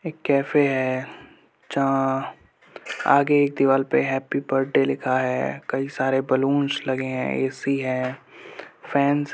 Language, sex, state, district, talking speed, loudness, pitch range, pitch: Hindi, male, Uttar Pradesh, Budaun, 135 wpm, -23 LUFS, 130-140 Hz, 135 Hz